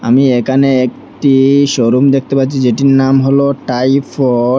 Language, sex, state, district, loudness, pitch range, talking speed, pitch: Bengali, male, Assam, Hailakandi, -11 LUFS, 125-135 Hz, 130 wpm, 135 Hz